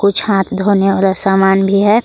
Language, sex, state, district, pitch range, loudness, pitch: Hindi, female, Jharkhand, Garhwa, 195-200 Hz, -13 LUFS, 195 Hz